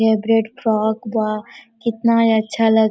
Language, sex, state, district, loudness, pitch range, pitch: Hindi, female, Chhattisgarh, Korba, -18 LUFS, 220-225 Hz, 220 Hz